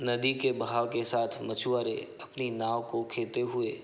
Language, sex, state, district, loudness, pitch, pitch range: Hindi, male, Uttar Pradesh, Hamirpur, -31 LUFS, 120 Hz, 115-130 Hz